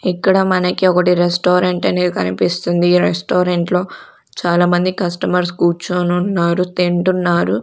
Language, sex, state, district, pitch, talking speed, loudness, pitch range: Telugu, female, Andhra Pradesh, Sri Satya Sai, 180 Hz, 110 wpm, -15 LUFS, 175-180 Hz